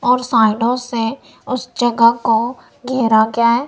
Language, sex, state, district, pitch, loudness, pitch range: Hindi, female, Punjab, Kapurthala, 235 Hz, -16 LUFS, 230-250 Hz